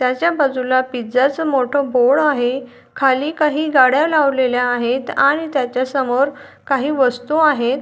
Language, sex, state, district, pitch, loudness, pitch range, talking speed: Marathi, female, Maharashtra, Dhule, 270 Hz, -16 LUFS, 255-290 Hz, 130 wpm